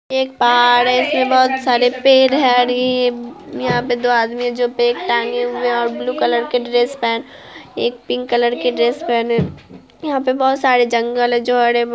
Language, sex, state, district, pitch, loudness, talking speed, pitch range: Hindi, female, Bihar, Araria, 245 Hz, -16 LUFS, 195 wpm, 240-255 Hz